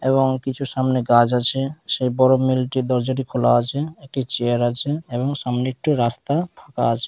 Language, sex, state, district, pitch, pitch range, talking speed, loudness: Bengali, male, West Bengal, Dakshin Dinajpur, 130 Hz, 125-135 Hz, 170 wpm, -20 LUFS